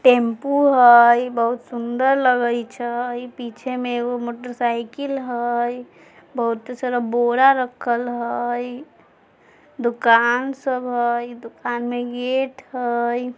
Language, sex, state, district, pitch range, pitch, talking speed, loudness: Maithili, female, Bihar, Samastipur, 240-250 Hz, 245 Hz, 105 wpm, -20 LUFS